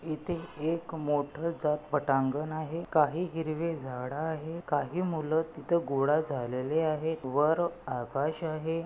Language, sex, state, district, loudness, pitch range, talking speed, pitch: Marathi, male, Maharashtra, Nagpur, -31 LUFS, 145-165 Hz, 120 wpm, 155 Hz